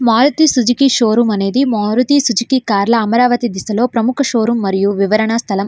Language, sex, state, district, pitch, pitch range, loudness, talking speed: Telugu, female, Andhra Pradesh, Srikakulam, 235 Hz, 215-250 Hz, -13 LUFS, 160 wpm